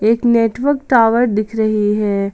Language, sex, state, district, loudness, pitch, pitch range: Hindi, female, Jharkhand, Palamu, -15 LUFS, 225 Hz, 210-240 Hz